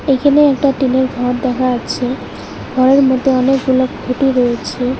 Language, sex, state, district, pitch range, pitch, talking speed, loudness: Bengali, female, West Bengal, Alipurduar, 250-270 Hz, 260 Hz, 130 wpm, -14 LUFS